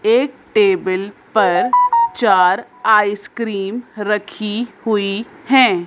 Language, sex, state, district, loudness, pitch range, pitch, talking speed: Hindi, female, Madhya Pradesh, Bhopal, -16 LUFS, 200-245 Hz, 215 Hz, 80 wpm